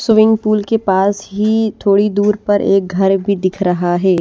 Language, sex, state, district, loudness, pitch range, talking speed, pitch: Hindi, female, Bihar, Patna, -14 LUFS, 190-215 Hz, 200 wpm, 200 Hz